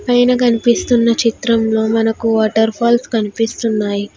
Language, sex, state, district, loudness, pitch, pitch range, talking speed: Telugu, female, Telangana, Hyderabad, -15 LUFS, 225 Hz, 220-235 Hz, 100 wpm